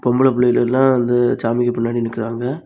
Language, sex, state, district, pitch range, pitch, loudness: Tamil, male, Tamil Nadu, Kanyakumari, 120-125 Hz, 120 Hz, -17 LUFS